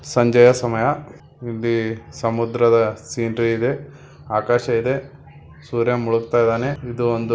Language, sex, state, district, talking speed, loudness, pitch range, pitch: Kannada, male, Karnataka, Belgaum, 100 wpm, -19 LUFS, 115-120 Hz, 115 Hz